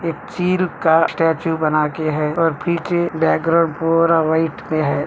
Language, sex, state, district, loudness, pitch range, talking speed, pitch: Hindi, male, Andhra Pradesh, Anantapur, -18 LUFS, 155-170 Hz, 155 wpm, 165 Hz